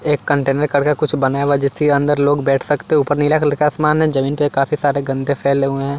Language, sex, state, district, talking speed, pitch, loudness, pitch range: Hindi, male, Chandigarh, Chandigarh, 250 wpm, 145 Hz, -16 LUFS, 140-150 Hz